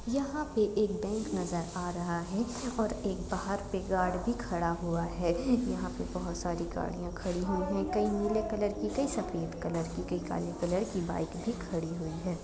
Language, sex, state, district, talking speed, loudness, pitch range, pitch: Hindi, female, Jharkhand, Jamtara, 180 wpm, -33 LUFS, 170-215 Hz, 185 Hz